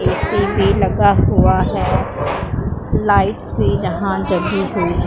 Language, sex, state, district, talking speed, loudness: Hindi, female, Punjab, Pathankot, 120 wpm, -16 LUFS